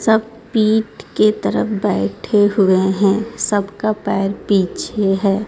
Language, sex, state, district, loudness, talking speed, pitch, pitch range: Hindi, female, Jharkhand, Ranchi, -17 LUFS, 120 wpm, 205 Hz, 195-215 Hz